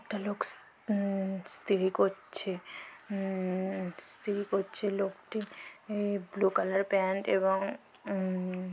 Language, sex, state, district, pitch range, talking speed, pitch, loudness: Bengali, female, West Bengal, North 24 Parganas, 190-205 Hz, 95 wpm, 195 Hz, -33 LUFS